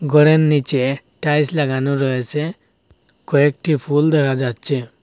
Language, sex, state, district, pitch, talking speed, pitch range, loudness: Bengali, male, Assam, Hailakandi, 145 Hz, 105 wpm, 135-150 Hz, -17 LUFS